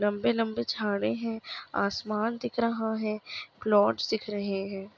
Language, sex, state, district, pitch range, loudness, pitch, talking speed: Hindi, female, Chhattisgarh, Raigarh, 200-225 Hz, -29 LUFS, 210 Hz, 145 wpm